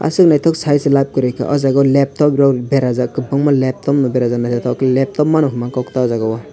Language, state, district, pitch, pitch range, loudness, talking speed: Kokborok, Tripura, West Tripura, 135 Hz, 125-145 Hz, -15 LUFS, 240 wpm